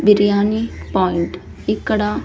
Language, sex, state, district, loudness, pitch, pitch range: Telugu, female, Andhra Pradesh, Sri Satya Sai, -18 LUFS, 205 Hz, 190-210 Hz